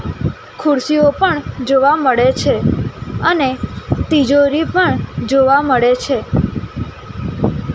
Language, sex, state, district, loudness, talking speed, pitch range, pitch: Gujarati, female, Gujarat, Gandhinagar, -15 LUFS, 95 wpm, 265-305 Hz, 280 Hz